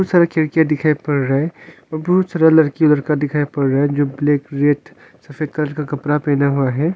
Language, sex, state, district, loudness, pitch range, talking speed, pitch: Hindi, male, Arunachal Pradesh, Longding, -17 LUFS, 145-155 Hz, 215 wpm, 150 Hz